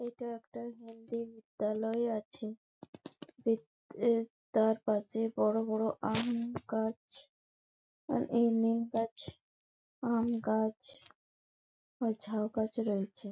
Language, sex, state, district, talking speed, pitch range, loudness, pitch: Bengali, female, West Bengal, Malda, 105 wpm, 220-235 Hz, -34 LUFS, 225 Hz